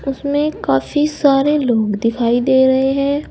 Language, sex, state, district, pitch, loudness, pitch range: Hindi, female, Uttar Pradesh, Saharanpur, 270 Hz, -15 LUFS, 240-290 Hz